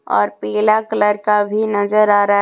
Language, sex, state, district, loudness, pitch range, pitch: Hindi, female, Jharkhand, Deoghar, -16 LUFS, 205-215 Hz, 210 Hz